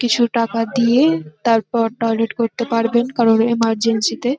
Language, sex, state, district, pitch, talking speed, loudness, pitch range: Bengali, female, West Bengal, North 24 Parganas, 230 Hz, 135 wpm, -17 LUFS, 225-235 Hz